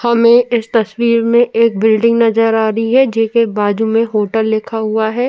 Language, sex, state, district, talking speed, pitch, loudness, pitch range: Hindi, female, Uttar Pradesh, Jyotiba Phule Nagar, 190 wpm, 225 Hz, -13 LUFS, 220-235 Hz